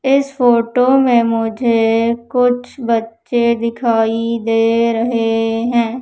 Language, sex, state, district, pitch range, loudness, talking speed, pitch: Hindi, female, Madhya Pradesh, Umaria, 225-245 Hz, -15 LUFS, 100 wpm, 235 Hz